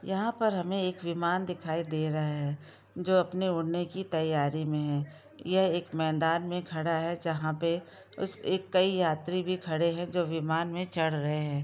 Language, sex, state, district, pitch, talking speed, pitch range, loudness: Hindi, female, Jharkhand, Jamtara, 170 Hz, 185 wpm, 155-180 Hz, -30 LUFS